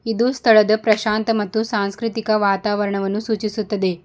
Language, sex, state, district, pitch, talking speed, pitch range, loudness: Kannada, female, Karnataka, Bidar, 215 Hz, 105 wpm, 205-225 Hz, -19 LUFS